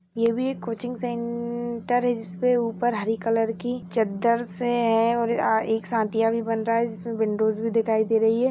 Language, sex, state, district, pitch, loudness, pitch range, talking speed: Hindi, female, Bihar, Jahanabad, 230 Hz, -24 LUFS, 225-240 Hz, 185 wpm